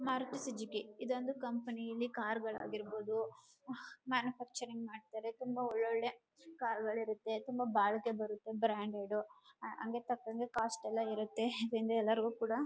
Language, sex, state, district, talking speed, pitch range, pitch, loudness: Kannada, female, Karnataka, Chamarajanagar, 130 wpm, 220-245 Hz, 230 Hz, -39 LUFS